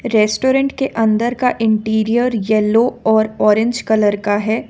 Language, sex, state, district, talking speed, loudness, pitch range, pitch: Hindi, female, Jharkhand, Ranchi, 140 wpm, -15 LUFS, 215-240 Hz, 220 Hz